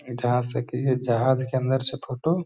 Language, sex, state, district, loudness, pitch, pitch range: Hindi, male, Bihar, Gaya, -24 LUFS, 130 Hz, 125-130 Hz